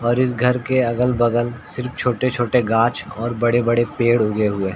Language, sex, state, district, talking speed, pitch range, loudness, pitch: Hindi, male, Uttar Pradesh, Ghazipur, 175 wpm, 115-125 Hz, -19 LUFS, 120 Hz